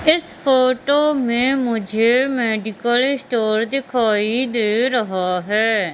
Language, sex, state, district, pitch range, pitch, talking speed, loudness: Hindi, female, Madhya Pradesh, Katni, 220-260 Hz, 240 Hz, 100 wpm, -18 LUFS